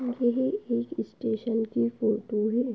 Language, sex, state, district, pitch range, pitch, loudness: Hindi, female, Uttar Pradesh, Etah, 220-245 Hz, 235 Hz, -28 LUFS